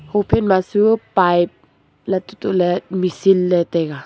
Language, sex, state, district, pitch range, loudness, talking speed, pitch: Wancho, female, Arunachal Pradesh, Longding, 175-195 Hz, -17 LUFS, 160 wpm, 185 Hz